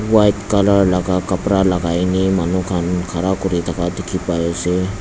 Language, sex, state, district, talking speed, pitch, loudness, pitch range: Nagamese, male, Nagaland, Dimapur, 165 wpm, 90 Hz, -17 LUFS, 90-95 Hz